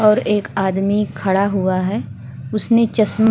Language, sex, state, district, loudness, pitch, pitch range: Hindi, female, Uttar Pradesh, Hamirpur, -18 LUFS, 200 Hz, 185-215 Hz